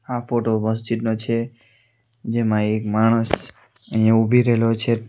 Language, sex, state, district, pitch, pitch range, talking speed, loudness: Gujarati, male, Gujarat, Valsad, 115 Hz, 110-115 Hz, 130 wpm, -20 LUFS